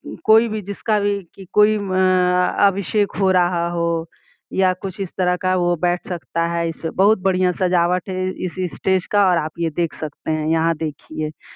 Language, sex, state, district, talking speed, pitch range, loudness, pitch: Hindi, female, Uttar Pradesh, Gorakhpur, 185 wpm, 170-195 Hz, -20 LUFS, 180 Hz